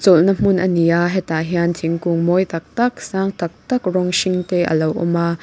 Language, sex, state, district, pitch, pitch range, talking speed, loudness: Mizo, female, Mizoram, Aizawl, 175 Hz, 170-185 Hz, 230 wpm, -18 LUFS